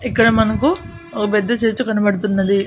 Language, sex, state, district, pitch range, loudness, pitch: Telugu, female, Andhra Pradesh, Annamaya, 205-240 Hz, -17 LUFS, 220 Hz